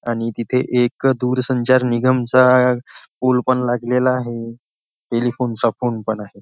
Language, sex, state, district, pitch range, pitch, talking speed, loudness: Marathi, male, Maharashtra, Nagpur, 120-125 Hz, 125 Hz, 120 wpm, -18 LUFS